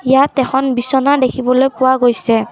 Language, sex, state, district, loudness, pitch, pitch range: Assamese, female, Assam, Kamrup Metropolitan, -13 LUFS, 260 Hz, 250-265 Hz